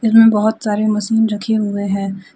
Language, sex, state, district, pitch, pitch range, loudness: Hindi, female, Jharkhand, Deoghar, 215 Hz, 205-225 Hz, -16 LUFS